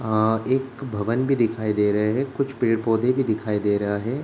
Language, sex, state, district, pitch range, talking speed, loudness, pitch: Hindi, male, Uttar Pradesh, Ghazipur, 105-130 Hz, 210 wpm, -23 LUFS, 115 Hz